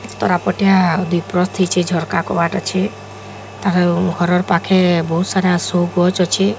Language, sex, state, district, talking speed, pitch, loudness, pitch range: Odia, female, Odisha, Sambalpur, 120 wpm, 180 Hz, -16 LUFS, 170-185 Hz